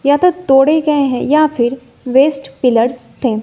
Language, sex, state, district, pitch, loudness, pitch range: Hindi, female, Bihar, West Champaran, 270 Hz, -13 LUFS, 250-300 Hz